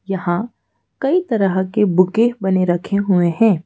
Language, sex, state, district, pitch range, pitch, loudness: Hindi, female, Madhya Pradesh, Bhopal, 185-225 Hz, 195 Hz, -17 LUFS